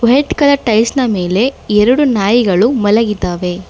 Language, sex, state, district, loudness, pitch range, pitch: Kannada, female, Karnataka, Bangalore, -12 LUFS, 205-260 Hz, 225 Hz